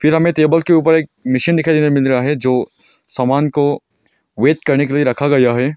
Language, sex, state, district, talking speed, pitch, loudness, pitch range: Hindi, male, Arunachal Pradesh, Longding, 230 wpm, 145 Hz, -14 LUFS, 130-160 Hz